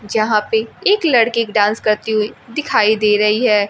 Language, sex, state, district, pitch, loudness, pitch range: Hindi, female, Bihar, Kaimur, 215 Hz, -15 LUFS, 210-235 Hz